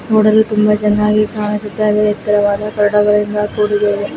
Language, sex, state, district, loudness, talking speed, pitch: Kannada, female, Karnataka, Raichur, -14 LUFS, 115 wpm, 210 Hz